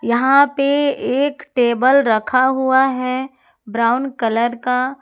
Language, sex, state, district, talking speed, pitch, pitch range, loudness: Hindi, female, Jharkhand, Ranchi, 120 wpm, 255 Hz, 240-270 Hz, -16 LUFS